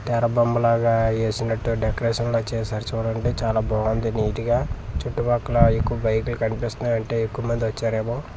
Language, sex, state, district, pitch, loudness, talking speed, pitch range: Telugu, male, Andhra Pradesh, Manyam, 115 Hz, -23 LUFS, 135 wpm, 110-120 Hz